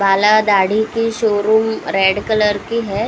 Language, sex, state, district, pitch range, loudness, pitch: Hindi, female, Maharashtra, Mumbai Suburban, 200-220 Hz, -15 LUFS, 215 Hz